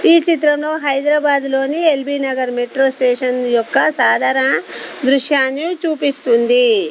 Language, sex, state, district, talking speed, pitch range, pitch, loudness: Telugu, female, Telangana, Komaram Bheem, 95 wpm, 265-310 Hz, 275 Hz, -15 LUFS